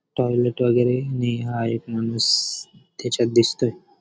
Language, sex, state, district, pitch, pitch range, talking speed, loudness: Marathi, male, Maharashtra, Dhule, 120 Hz, 115-125 Hz, 120 wpm, -21 LUFS